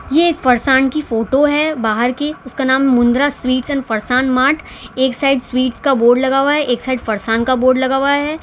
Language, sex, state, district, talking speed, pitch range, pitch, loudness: Hindi, female, Gujarat, Valsad, 205 wpm, 250-285 Hz, 260 Hz, -15 LUFS